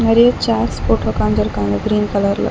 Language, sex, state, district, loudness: Tamil, female, Tamil Nadu, Chennai, -16 LUFS